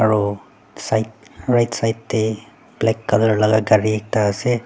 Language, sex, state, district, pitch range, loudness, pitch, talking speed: Nagamese, female, Nagaland, Dimapur, 105-115 Hz, -19 LUFS, 110 Hz, 140 wpm